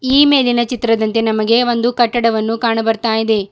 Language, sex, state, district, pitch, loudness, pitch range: Kannada, female, Karnataka, Bidar, 230 Hz, -14 LUFS, 225-240 Hz